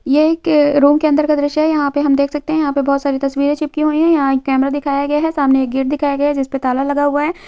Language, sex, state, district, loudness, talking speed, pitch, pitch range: Hindi, female, Jharkhand, Jamtara, -15 LUFS, 310 wpm, 285 Hz, 280-300 Hz